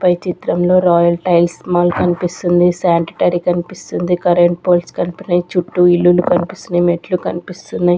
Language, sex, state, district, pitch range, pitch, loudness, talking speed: Telugu, female, Andhra Pradesh, Sri Satya Sai, 175-180 Hz, 175 Hz, -15 LUFS, 130 wpm